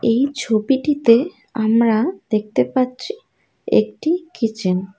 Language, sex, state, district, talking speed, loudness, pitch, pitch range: Bengali, female, West Bengal, Alipurduar, 95 wpm, -18 LUFS, 245 Hz, 220-295 Hz